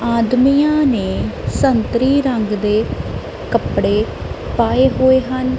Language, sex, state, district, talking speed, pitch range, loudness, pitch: Punjabi, female, Punjab, Kapurthala, 95 wpm, 230-265 Hz, -16 LUFS, 255 Hz